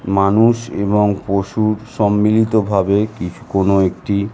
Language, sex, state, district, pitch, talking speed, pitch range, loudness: Bengali, male, West Bengal, North 24 Parganas, 100 Hz, 110 wpm, 100-110 Hz, -16 LUFS